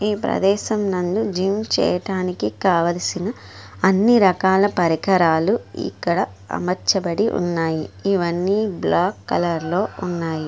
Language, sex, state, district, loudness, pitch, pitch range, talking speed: Telugu, female, Andhra Pradesh, Guntur, -20 LUFS, 185 Hz, 170-200 Hz, 95 wpm